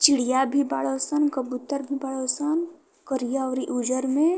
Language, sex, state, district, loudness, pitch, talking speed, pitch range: Bhojpuri, female, Uttar Pradesh, Varanasi, -25 LUFS, 270 Hz, 165 wpm, 260-295 Hz